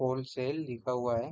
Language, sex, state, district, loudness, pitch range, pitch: Hindi, male, Uttar Pradesh, Deoria, -34 LUFS, 125-130 Hz, 130 Hz